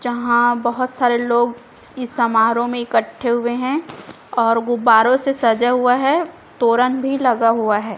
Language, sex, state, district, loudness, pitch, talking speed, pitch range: Hindi, female, Chhattisgarh, Raipur, -17 LUFS, 240 Hz, 160 wpm, 235-250 Hz